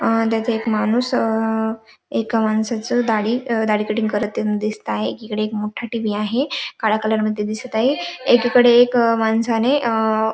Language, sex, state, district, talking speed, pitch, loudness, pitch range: Marathi, female, Maharashtra, Dhule, 150 wpm, 225 Hz, -19 LUFS, 215-235 Hz